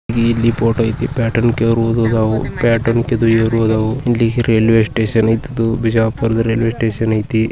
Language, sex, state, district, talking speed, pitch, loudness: Kannada, male, Karnataka, Bijapur, 95 wpm, 115 Hz, -15 LUFS